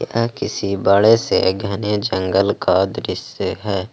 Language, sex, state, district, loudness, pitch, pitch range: Hindi, male, Jharkhand, Ranchi, -18 LUFS, 100 Hz, 95-105 Hz